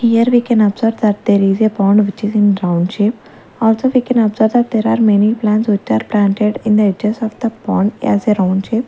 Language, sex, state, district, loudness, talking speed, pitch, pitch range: English, female, Maharashtra, Gondia, -14 LUFS, 235 wpm, 215 Hz, 205-225 Hz